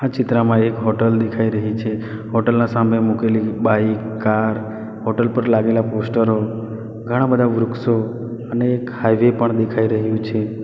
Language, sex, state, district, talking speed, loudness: Gujarati, male, Gujarat, Valsad, 150 wpm, -18 LUFS